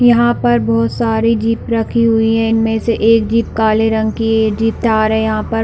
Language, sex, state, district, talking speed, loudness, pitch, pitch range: Hindi, female, Chhattisgarh, Raigarh, 215 wpm, -14 LUFS, 225 Hz, 215-225 Hz